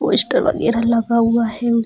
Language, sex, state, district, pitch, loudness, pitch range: Hindi, female, Bihar, Bhagalpur, 235 Hz, -16 LUFS, 230-235 Hz